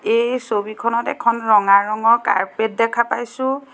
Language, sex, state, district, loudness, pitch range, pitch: Assamese, female, Assam, Sonitpur, -18 LUFS, 215-235 Hz, 230 Hz